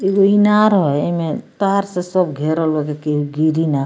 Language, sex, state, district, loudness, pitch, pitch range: Bhojpuri, female, Bihar, Muzaffarpur, -17 LUFS, 160 Hz, 150-195 Hz